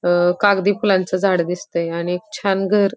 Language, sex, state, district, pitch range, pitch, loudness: Marathi, female, Maharashtra, Pune, 175-200 Hz, 190 Hz, -18 LUFS